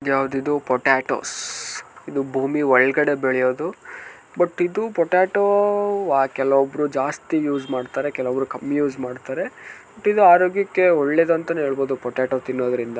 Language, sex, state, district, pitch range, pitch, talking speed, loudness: Kannada, male, Karnataka, Mysore, 130-170 Hz, 140 Hz, 125 wpm, -21 LUFS